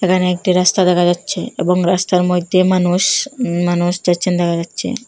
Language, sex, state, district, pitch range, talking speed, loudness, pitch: Bengali, female, Assam, Hailakandi, 175-185 Hz, 165 wpm, -15 LUFS, 180 Hz